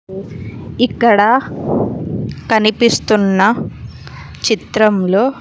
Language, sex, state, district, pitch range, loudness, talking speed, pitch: Telugu, female, Andhra Pradesh, Sri Satya Sai, 195-230 Hz, -14 LUFS, 35 wpm, 215 Hz